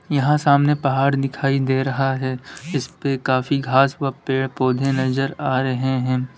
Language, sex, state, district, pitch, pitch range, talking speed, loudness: Hindi, male, Uttar Pradesh, Lalitpur, 135 Hz, 130-140 Hz, 160 wpm, -20 LUFS